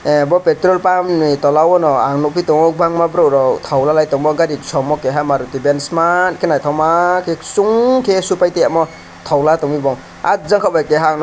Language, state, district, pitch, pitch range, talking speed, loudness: Kokborok, Tripura, West Tripura, 160 Hz, 145-180 Hz, 210 wpm, -14 LUFS